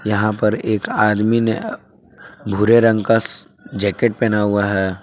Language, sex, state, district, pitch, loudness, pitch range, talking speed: Hindi, male, Jharkhand, Palamu, 105 Hz, -17 LUFS, 105-115 Hz, 145 wpm